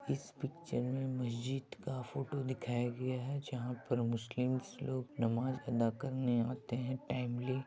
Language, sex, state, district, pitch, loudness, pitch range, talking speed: Hindi, female, Bihar, Begusarai, 130 Hz, -38 LUFS, 120-135 Hz, 140 wpm